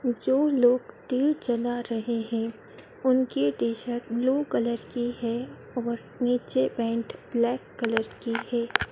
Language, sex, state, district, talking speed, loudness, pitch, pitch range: Hindi, female, Madhya Pradesh, Dhar, 130 wpm, -27 LUFS, 240 Hz, 230-250 Hz